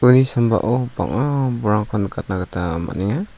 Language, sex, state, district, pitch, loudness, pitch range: Garo, male, Meghalaya, South Garo Hills, 105 Hz, -20 LUFS, 90-125 Hz